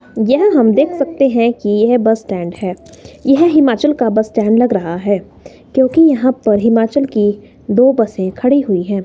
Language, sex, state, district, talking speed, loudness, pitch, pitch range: Hindi, female, Himachal Pradesh, Shimla, 180 wpm, -13 LUFS, 230 Hz, 205-270 Hz